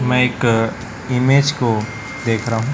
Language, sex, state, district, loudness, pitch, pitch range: Hindi, male, Chhattisgarh, Raipur, -18 LUFS, 120 Hz, 115-125 Hz